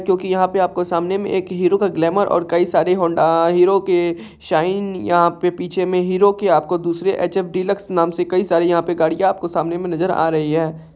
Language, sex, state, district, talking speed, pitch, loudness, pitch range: Hindi, male, Bihar, Saharsa, 225 wpm, 180 Hz, -18 LUFS, 170-185 Hz